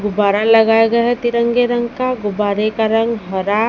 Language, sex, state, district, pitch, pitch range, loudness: Hindi, female, Chhattisgarh, Raipur, 225 Hz, 210-235 Hz, -15 LUFS